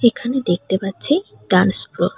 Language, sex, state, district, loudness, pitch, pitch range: Bengali, female, West Bengal, Cooch Behar, -17 LUFS, 235 Hz, 190-270 Hz